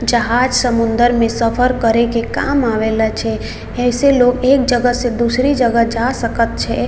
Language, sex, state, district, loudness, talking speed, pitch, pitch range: Maithili, female, Bihar, Samastipur, -15 LUFS, 175 wpm, 240 Hz, 230-250 Hz